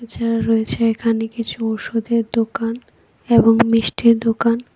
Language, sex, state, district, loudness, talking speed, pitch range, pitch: Bengali, female, Tripura, West Tripura, -18 LUFS, 115 wpm, 225-230 Hz, 230 Hz